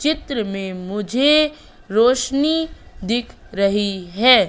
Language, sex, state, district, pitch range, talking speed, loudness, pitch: Hindi, female, Madhya Pradesh, Katni, 200-285 Hz, 95 wpm, -19 LUFS, 235 Hz